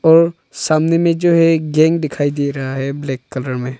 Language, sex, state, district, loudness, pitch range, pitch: Hindi, male, Arunachal Pradesh, Longding, -16 LUFS, 135-165 Hz, 155 Hz